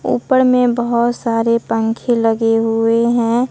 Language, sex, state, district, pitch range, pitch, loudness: Hindi, female, Bihar, Katihar, 225-240 Hz, 230 Hz, -15 LUFS